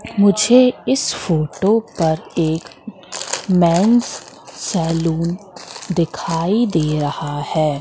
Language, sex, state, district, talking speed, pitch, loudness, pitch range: Hindi, female, Madhya Pradesh, Katni, 85 wpm, 170 Hz, -17 LUFS, 160-215 Hz